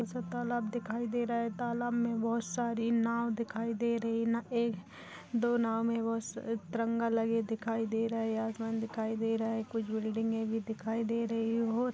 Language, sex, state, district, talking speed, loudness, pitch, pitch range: Hindi, female, Chhattisgarh, Kabirdham, 190 wpm, -34 LUFS, 230 Hz, 225-235 Hz